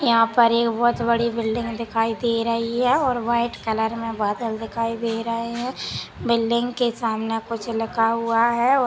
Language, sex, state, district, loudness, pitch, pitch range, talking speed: Hindi, female, Chhattisgarh, Sukma, -22 LUFS, 230 Hz, 225-235 Hz, 175 wpm